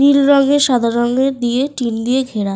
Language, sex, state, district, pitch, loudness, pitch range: Bengali, female, Jharkhand, Sahebganj, 255 Hz, -15 LUFS, 240-275 Hz